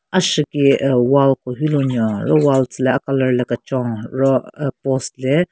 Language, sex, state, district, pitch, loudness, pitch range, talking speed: Rengma, female, Nagaland, Kohima, 135 Hz, -17 LUFS, 125-140 Hz, 195 wpm